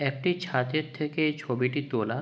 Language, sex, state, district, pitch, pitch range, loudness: Bengali, male, West Bengal, Jhargram, 145 Hz, 125-155 Hz, -29 LUFS